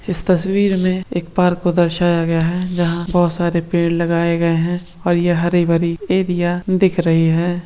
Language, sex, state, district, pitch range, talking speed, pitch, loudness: Marwari, female, Rajasthan, Nagaur, 170-180 Hz, 190 wpm, 175 Hz, -17 LUFS